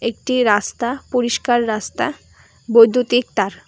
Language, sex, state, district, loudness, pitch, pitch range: Bengali, female, Tripura, West Tripura, -17 LUFS, 240 Hz, 225-245 Hz